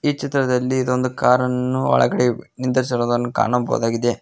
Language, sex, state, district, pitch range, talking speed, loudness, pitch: Kannada, male, Karnataka, Koppal, 120-130 Hz, 100 wpm, -19 LUFS, 125 Hz